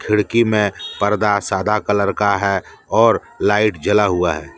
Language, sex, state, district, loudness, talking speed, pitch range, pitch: Hindi, male, Jharkhand, Deoghar, -17 LUFS, 155 wpm, 100-105 Hz, 105 Hz